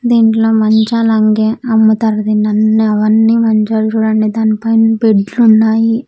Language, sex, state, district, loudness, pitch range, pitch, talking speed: Telugu, female, Andhra Pradesh, Sri Satya Sai, -11 LUFS, 215-225 Hz, 220 Hz, 110 wpm